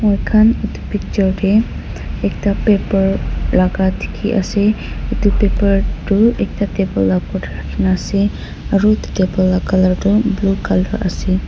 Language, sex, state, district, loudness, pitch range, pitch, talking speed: Nagamese, female, Nagaland, Dimapur, -16 LUFS, 190-210 Hz, 200 Hz, 160 wpm